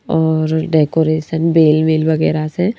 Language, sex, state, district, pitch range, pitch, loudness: Hindi, female, Madhya Pradesh, Bhopal, 155-160 Hz, 160 Hz, -15 LUFS